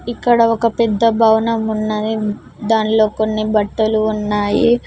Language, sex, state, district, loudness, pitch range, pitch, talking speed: Telugu, female, Telangana, Mahabubabad, -16 LUFS, 215-230 Hz, 220 Hz, 110 wpm